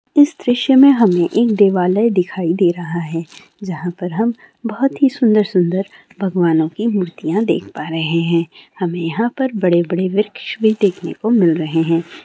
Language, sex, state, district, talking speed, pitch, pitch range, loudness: Maithili, female, Bihar, Sitamarhi, 165 wpm, 185 Hz, 170-225 Hz, -16 LUFS